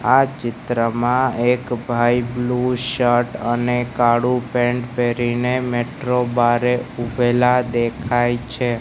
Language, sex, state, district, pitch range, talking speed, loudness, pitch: Gujarati, male, Gujarat, Gandhinagar, 120-125 Hz, 100 wpm, -19 LUFS, 120 Hz